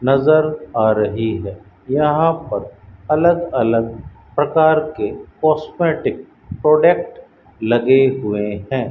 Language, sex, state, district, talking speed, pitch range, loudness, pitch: Hindi, male, Rajasthan, Bikaner, 100 wpm, 110-155 Hz, -17 LUFS, 135 Hz